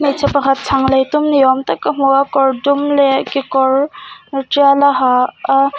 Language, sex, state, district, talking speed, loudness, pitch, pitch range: Mizo, female, Mizoram, Aizawl, 205 wpm, -14 LUFS, 275 Hz, 270-285 Hz